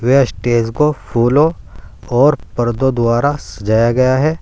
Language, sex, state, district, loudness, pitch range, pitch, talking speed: Hindi, male, Uttar Pradesh, Saharanpur, -15 LUFS, 115-140 Hz, 120 Hz, 135 wpm